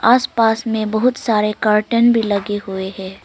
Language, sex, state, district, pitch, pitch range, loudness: Hindi, female, Arunachal Pradesh, Longding, 215 Hz, 205-230 Hz, -17 LUFS